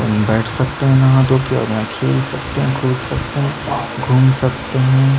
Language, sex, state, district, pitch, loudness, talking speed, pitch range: Hindi, male, Chhattisgarh, Sukma, 130 Hz, -16 LUFS, 185 wpm, 115-135 Hz